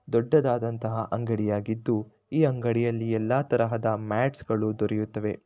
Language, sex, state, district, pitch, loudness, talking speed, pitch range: Kannada, male, Karnataka, Shimoga, 115 Hz, -27 LUFS, 100 wpm, 110-120 Hz